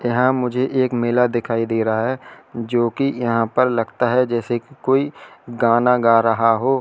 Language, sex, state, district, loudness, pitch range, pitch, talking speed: Hindi, male, Uttar Pradesh, Lalitpur, -19 LUFS, 115-130 Hz, 120 Hz, 185 wpm